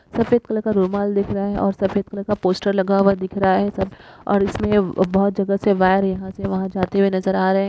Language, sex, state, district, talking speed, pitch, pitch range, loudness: Hindi, female, Uttar Pradesh, Muzaffarnagar, 255 wpm, 195 Hz, 190-200 Hz, -19 LUFS